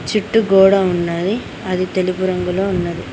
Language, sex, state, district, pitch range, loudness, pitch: Telugu, female, Telangana, Mahabubabad, 180-195 Hz, -17 LUFS, 185 Hz